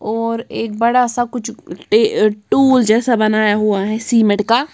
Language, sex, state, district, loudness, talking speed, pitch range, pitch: Hindi, female, Punjab, Kapurthala, -15 LUFS, 175 wpm, 215-245 Hz, 230 Hz